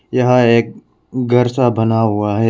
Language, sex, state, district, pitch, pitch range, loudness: Hindi, male, Arunachal Pradesh, Lower Dibang Valley, 120 Hz, 115-125 Hz, -14 LUFS